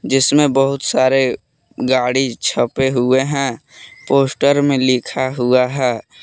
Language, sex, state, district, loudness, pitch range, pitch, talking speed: Hindi, male, Jharkhand, Palamu, -16 LUFS, 125-135 Hz, 130 Hz, 115 wpm